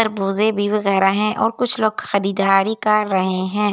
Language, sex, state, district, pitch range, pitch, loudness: Hindi, female, Delhi, New Delhi, 195-215 Hz, 205 Hz, -18 LUFS